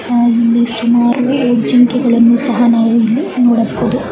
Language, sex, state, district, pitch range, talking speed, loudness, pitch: Kannada, female, Karnataka, Chamarajanagar, 235-245 Hz, 115 wpm, -12 LUFS, 240 Hz